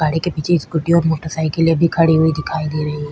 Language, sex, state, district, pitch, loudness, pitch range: Hindi, female, Chhattisgarh, Korba, 160 Hz, -17 LUFS, 155-165 Hz